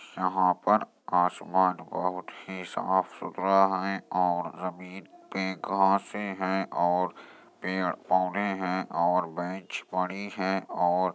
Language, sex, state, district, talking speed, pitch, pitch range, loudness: Hindi, male, Uttar Pradesh, Jyotiba Phule Nagar, 125 wpm, 95 Hz, 90-95 Hz, -28 LUFS